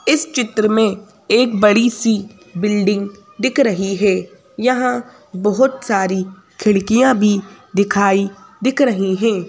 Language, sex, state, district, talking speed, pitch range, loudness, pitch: Hindi, female, Madhya Pradesh, Bhopal, 120 wpm, 195-245 Hz, -16 LUFS, 210 Hz